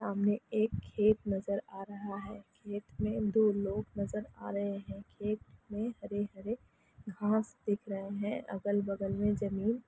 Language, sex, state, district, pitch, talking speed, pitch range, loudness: Hindi, female, Chhattisgarh, Sukma, 205 Hz, 165 wpm, 200-210 Hz, -35 LUFS